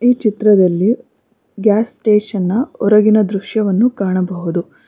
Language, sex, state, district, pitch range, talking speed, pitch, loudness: Kannada, female, Karnataka, Bangalore, 195-215 Hz, 100 wpm, 210 Hz, -15 LUFS